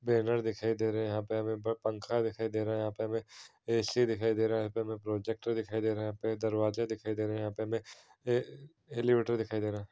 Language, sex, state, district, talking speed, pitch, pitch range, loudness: Hindi, male, Bihar, Saharsa, 260 wpm, 110 Hz, 110-115 Hz, -33 LUFS